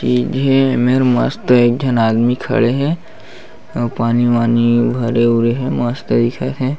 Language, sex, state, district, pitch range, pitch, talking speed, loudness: Chhattisgarhi, male, Chhattisgarh, Bastar, 120-130 Hz, 120 Hz, 150 wpm, -15 LUFS